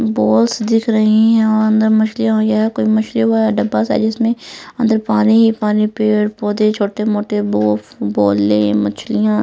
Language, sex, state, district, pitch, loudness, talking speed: Hindi, female, Punjab, Fazilka, 215 Hz, -15 LUFS, 160 wpm